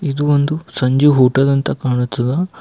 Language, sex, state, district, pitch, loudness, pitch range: Kannada, male, Karnataka, Bidar, 140 Hz, -15 LUFS, 130-145 Hz